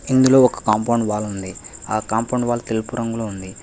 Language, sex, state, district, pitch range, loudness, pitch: Telugu, male, Telangana, Hyderabad, 105-120 Hz, -20 LUFS, 110 Hz